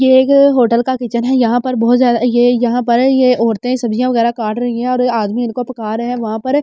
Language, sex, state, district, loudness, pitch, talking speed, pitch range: Hindi, female, Delhi, New Delhi, -14 LUFS, 245 Hz, 255 wpm, 235-255 Hz